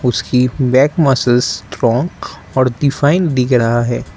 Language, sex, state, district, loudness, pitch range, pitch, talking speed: Hindi, male, Arunachal Pradesh, Lower Dibang Valley, -14 LUFS, 120-135 Hz, 125 Hz, 130 wpm